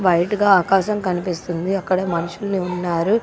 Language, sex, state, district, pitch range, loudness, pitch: Telugu, female, Andhra Pradesh, Guntur, 175-195 Hz, -20 LUFS, 185 Hz